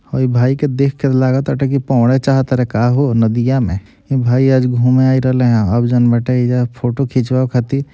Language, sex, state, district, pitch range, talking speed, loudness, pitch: Bhojpuri, male, Bihar, Gopalganj, 120-135 Hz, 195 wpm, -14 LUFS, 130 Hz